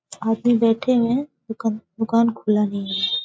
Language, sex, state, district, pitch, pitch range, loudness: Hindi, female, Bihar, Sitamarhi, 225 Hz, 215-235 Hz, -21 LUFS